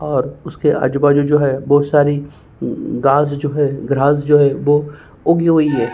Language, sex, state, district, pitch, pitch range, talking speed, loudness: Hindi, male, Uttar Pradesh, Jyotiba Phule Nagar, 145 Hz, 140-145 Hz, 180 wpm, -15 LUFS